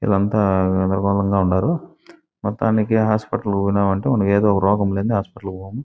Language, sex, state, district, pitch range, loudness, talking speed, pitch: Telugu, male, Andhra Pradesh, Chittoor, 100-110 Hz, -19 LUFS, 175 wpm, 100 Hz